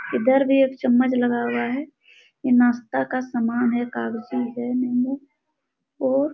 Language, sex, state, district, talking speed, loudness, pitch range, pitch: Hindi, female, Jharkhand, Sahebganj, 150 wpm, -22 LUFS, 240-265 Hz, 250 Hz